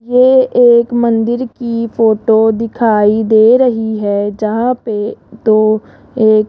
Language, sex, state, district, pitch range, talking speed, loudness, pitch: Hindi, female, Rajasthan, Jaipur, 215-240 Hz, 130 wpm, -12 LUFS, 225 Hz